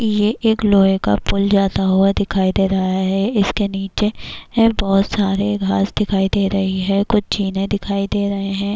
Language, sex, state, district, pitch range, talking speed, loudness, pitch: Urdu, female, Bihar, Kishanganj, 195-205 Hz, 180 wpm, -17 LUFS, 200 Hz